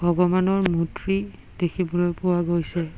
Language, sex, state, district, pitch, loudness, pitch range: Assamese, male, Assam, Sonitpur, 175 Hz, -23 LUFS, 175-185 Hz